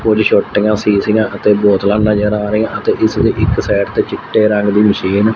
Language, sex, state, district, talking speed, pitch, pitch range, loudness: Punjabi, male, Punjab, Fazilka, 215 wpm, 105 Hz, 105-110 Hz, -13 LUFS